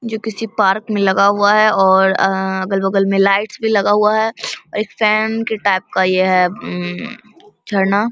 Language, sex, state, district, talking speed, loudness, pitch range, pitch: Hindi, male, Bihar, Saharsa, 185 wpm, -15 LUFS, 190-220 Hz, 205 Hz